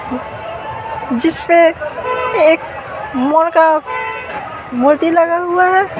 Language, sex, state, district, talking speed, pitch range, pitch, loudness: Hindi, female, Bihar, Patna, 80 wpm, 290-340 Hz, 320 Hz, -14 LUFS